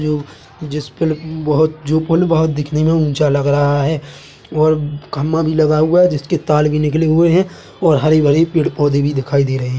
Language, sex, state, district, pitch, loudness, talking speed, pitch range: Hindi, male, Chhattisgarh, Bilaspur, 150 Hz, -15 LUFS, 210 wpm, 145-160 Hz